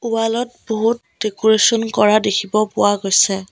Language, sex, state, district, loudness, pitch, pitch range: Assamese, female, Assam, Kamrup Metropolitan, -16 LUFS, 215 Hz, 205-230 Hz